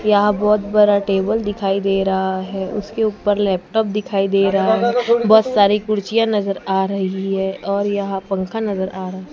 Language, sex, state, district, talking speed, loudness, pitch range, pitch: Hindi, female, Maharashtra, Gondia, 185 wpm, -18 LUFS, 195-210 Hz, 200 Hz